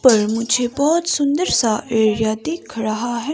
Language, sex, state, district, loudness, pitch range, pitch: Hindi, female, Himachal Pradesh, Shimla, -18 LUFS, 220-295 Hz, 240 Hz